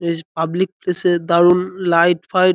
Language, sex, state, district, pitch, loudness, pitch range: Bengali, male, West Bengal, North 24 Parganas, 175 Hz, -16 LUFS, 170-185 Hz